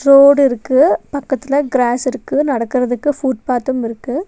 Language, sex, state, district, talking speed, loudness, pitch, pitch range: Tamil, female, Tamil Nadu, Nilgiris, 110 wpm, -15 LUFS, 270 Hz, 250-280 Hz